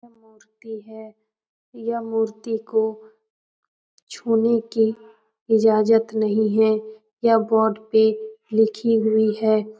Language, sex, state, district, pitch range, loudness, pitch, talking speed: Hindi, female, Bihar, Jamui, 220-225 Hz, -20 LUFS, 220 Hz, 105 wpm